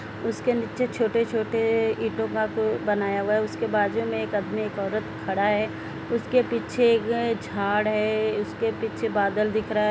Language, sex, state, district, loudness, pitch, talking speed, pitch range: Hindi, female, Uttar Pradesh, Ghazipur, -25 LUFS, 215 Hz, 180 wpm, 200-230 Hz